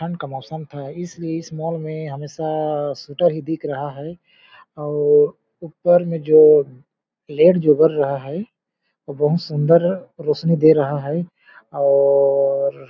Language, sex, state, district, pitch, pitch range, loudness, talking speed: Hindi, male, Chhattisgarh, Balrampur, 155 Hz, 145-165 Hz, -18 LUFS, 145 wpm